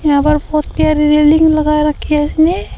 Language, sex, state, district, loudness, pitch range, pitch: Hindi, female, Uttar Pradesh, Shamli, -12 LUFS, 300-310 Hz, 300 Hz